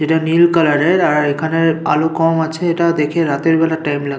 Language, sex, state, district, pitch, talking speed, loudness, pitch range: Bengali, male, West Bengal, Paschim Medinipur, 160 Hz, 215 wpm, -15 LUFS, 150-165 Hz